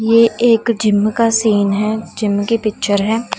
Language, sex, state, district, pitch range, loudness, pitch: Hindi, female, Punjab, Kapurthala, 205-230 Hz, -15 LUFS, 220 Hz